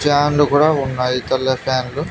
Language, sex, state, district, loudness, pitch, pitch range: Telugu, male, Telangana, Mahabubabad, -17 LUFS, 135 Hz, 130-145 Hz